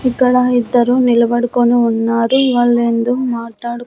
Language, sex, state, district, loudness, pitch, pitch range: Telugu, female, Andhra Pradesh, Annamaya, -14 LUFS, 240 Hz, 235-250 Hz